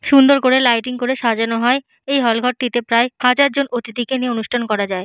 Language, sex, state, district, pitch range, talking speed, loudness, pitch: Bengali, female, West Bengal, Purulia, 235-260 Hz, 200 wpm, -16 LUFS, 245 Hz